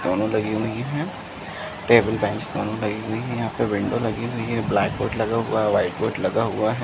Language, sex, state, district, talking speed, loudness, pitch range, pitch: Hindi, male, Uttar Pradesh, Muzaffarnagar, 230 wpm, -23 LUFS, 110-115 Hz, 110 Hz